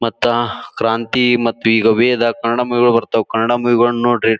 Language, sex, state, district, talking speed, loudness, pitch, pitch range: Kannada, male, Karnataka, Bijapur, 175 wpm, -15 LUFS, 120 Hz, 115-120 Hz